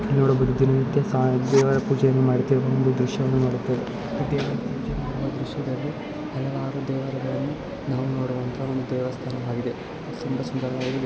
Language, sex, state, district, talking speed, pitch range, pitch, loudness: Kannada, female, Karnataka, Raichur, 115 wpm, 130-135 Hz, 130 Hz, -24 LUFS